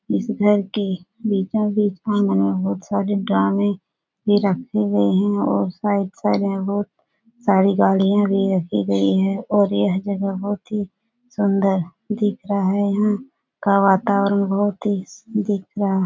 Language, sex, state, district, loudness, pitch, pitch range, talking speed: Hindi, female, Bihar, Supaul, -20 LUFS, 200 Hz, 190-205 Hz, 155 wpm